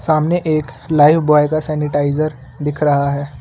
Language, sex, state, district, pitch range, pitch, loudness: Hindi, male, Uttar Pradesh, Lucknow, 145-155 Hz, 150 Hz, -16 LUFS